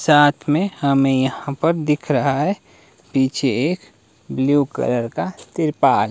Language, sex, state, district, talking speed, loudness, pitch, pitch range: Hindi, male, Himachal Pradesh, Shimla, 140 wpm, -19 LUFS, 145 Hz, 135-150 Hz